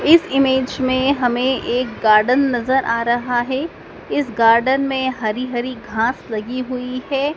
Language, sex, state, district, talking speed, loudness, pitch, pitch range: Hindi, female, Madhya Pradesh, Dhar, 155 wpm, -18 LUFS, 255 Hz, 240-265 Hz